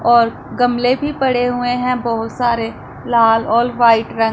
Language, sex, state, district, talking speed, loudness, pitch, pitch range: Hindi, female, Punjab, Pathankot, 165 wpm, -16 LUFS, 240 Hz, 230-245 Hz